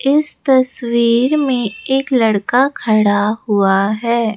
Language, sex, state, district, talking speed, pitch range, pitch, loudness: Hindi, female, Rajasthan, Jaipur, 110 wpm, 215-265 Hz, 235 Hz, -15 LUFS